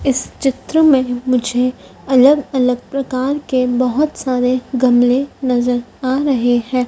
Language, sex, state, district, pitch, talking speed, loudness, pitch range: Hindi, female, Madhya Pradesh, Dhar, 255 Hz, 130 wpm, -16 LUFS, 250-270 Hz